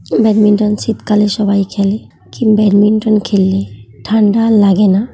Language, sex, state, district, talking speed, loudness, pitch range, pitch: Bengali, female, West Bengal, Kolkata, 130 wpm, -12 LUFS, 200-215 Hz, 210 Hz